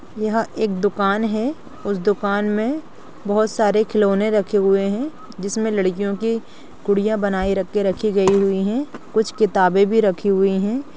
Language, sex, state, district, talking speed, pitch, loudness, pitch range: Hindi, female, Chhattisgarh, Rajnandgaon, 155 wpm, 210 Hz, -19 LUFS, 195-220 Hz